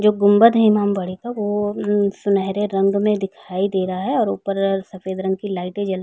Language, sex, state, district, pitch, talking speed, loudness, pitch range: Hindi, female, Uttar Pradesh, Jalaun, 200 Hz, 220 wpm, -19 LUFS, 190-205 Hz